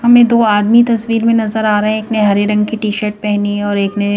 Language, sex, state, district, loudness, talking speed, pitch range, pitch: Hindi, female, Madhya Pradesh, Bhopal, -13 LUFS, 300 wpm, 205-225 Hz, 215 Hz